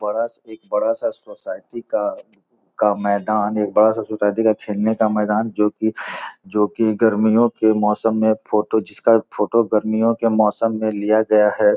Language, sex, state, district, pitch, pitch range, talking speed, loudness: Hindi, male, Bihar, Gopalganj, 110 Hz, 105-115 Hz, 180 wpm, -19 LUFS